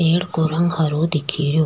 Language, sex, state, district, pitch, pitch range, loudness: Rajasthani, female, Rajasthan, Churu, 160 Hz, 155-170 Hz, -19 LUFS